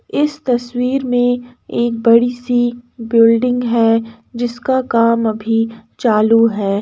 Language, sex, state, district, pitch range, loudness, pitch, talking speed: Hindi, female, Uttar Pradesh, Jalaun, 230-245 Hz, -15 LUFS, 235 Hz, 115 wpm